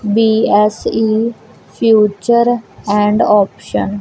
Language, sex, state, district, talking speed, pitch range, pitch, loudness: Punjabi, female, Punjab, Kapurthala, 75 wpm, 205-225 Hz, 215 Hz, -13 LUFS